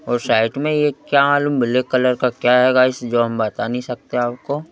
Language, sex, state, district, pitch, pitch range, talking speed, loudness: Hindi, male, Madhya Pradesh, Bhopal, 125 Hz, 120-140 Hz, 230 wpm, -18 LUFS